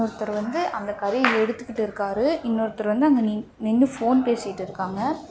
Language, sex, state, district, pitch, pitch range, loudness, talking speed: Tamil, female, Tamil Nadu, Namakkal, 225 Hz, 210-255 Hz, -23 LUFS, 145 wpm